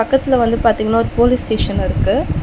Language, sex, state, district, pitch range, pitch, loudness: Tamil, female, Tamil Nadu, Chennai, 230-250 Hz, 235 Hz, -15 LUFS